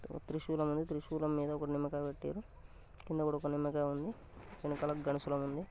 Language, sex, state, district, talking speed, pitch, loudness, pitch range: Telugu, male, Telangana, Nalgonda, 180 wpm, 145 Hz, -38 LUFS, 145-155 Hz